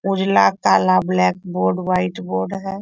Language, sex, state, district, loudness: Hindi, female, Bihar, Bhagalpur, -18 LUFS